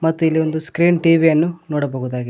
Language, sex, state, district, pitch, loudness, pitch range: Kannada, male, Karnataka, Koppal, 160 Hz, -17 LUFS, 150-165 Hz